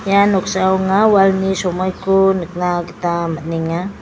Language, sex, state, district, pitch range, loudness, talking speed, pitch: Garo, female, Meghalaya, West Garo Hills, 175-195 Hz, -16 LUFS, 120 wpm, 190 Hz